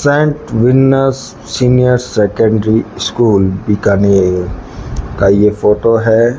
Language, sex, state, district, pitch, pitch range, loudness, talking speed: Hindi, male, Rajasthan, Bikaner, 110 Hz, 100-125 Hz, -11 LUFS, 95 wpm